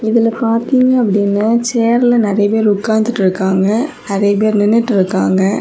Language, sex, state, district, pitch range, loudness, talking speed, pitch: Tamil, female, Tamil Nadu, Kanyakumari, 200-230 Hz, -13 LUFS, 130 wpm, 220 Hz